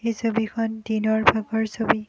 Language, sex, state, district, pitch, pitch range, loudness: Assamese, female, Assam, Kamrup Metropolitan, 220 Hz, 220-225 Hz, -23 LUFS